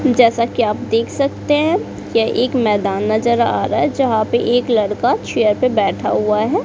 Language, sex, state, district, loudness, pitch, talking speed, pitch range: Hindi, female, Bihar, Kaimur, -16 LUFS, 235 Hz, 200 wpm, 215-255 Hz